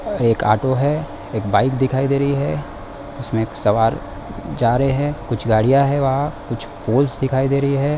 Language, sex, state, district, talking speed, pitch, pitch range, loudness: Hindi, male, Chhattisgarh, Rajnandgaon, 190 wpm, 130 Hz, 110-140 Hz, -19 LUFS